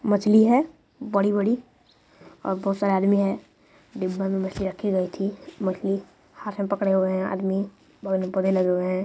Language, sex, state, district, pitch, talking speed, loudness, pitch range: Hindi, female, Bihar, Madhepura, 195 Hz, 170 wpm, -24 LUFS, 190-205 Hz